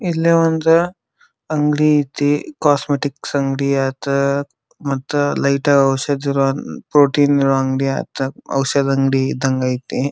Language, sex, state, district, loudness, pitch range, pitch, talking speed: Kannada, male, Karnataka, Dharwad, -17 LUFS, 135-145 Hz, 140 Hz, 100 wpm